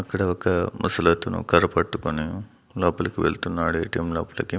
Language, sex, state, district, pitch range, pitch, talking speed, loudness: Telugu, male, Andhra Pradesh, Manyam, 80-95 Hz, 85 Hz, 120 wpm, -24 LUFS